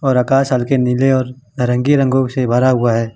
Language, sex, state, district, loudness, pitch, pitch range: Hindi, male, Jharkhand, Ranchi, -15 LUFS, 130 Hz, 125-135 Hz